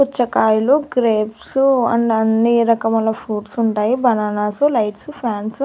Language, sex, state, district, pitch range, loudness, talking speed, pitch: Telugu, female, Andhra Pradesh, Annamaya, 220-255 Hz, -17 LUFS, 115 wpm, 230 Hz